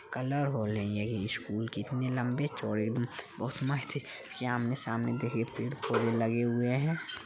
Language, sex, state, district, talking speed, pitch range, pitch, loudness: Hindi, male, Bihar, Jamui, 175 wpm, 115-130 Hz, 120 Hz, -33 LUFS